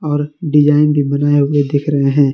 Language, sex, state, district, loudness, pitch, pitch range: Hindi, male, Jharkhand, Garhwa, -14 LUFS, 145 Hz, 145-150 Hz